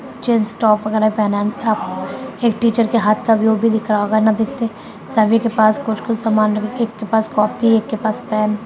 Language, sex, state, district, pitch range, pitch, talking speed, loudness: Hindi, female, Bihar, Madhepura, 215-230 Hz, 220 Hz, 210 wpm, -17 LUFS